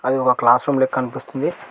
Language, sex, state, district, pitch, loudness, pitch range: Telugu, male, Telangana, Mahabubabad, 130 Hz, -19 LUFS, 125-130 Hz